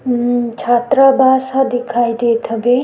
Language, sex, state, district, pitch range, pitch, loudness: Chhattisgarhi, female, Chhattisgarh, Sukma, 240-260 Hz, 245 Hz, -14 LUFS